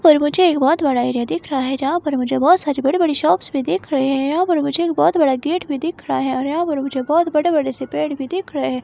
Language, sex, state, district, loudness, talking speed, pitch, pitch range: Hindi, female, Himachal Pradesh, Shimla, -18 LUFS, 280 wpm, 295 Hz, 270-335 Hz